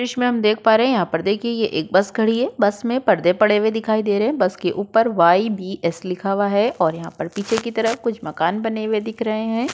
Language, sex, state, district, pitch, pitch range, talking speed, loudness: Hindi, female, Uttar Pradesh, Budaun, 215 Hz, 190-225 Hz, 270 wpm, -19 LUFS